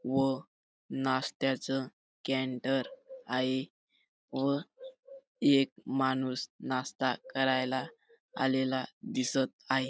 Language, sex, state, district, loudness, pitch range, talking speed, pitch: Marathi, male, Maharashtra, Dhule, -32 LUFS, 130-140 Hz, 75 wpm, 135 Hz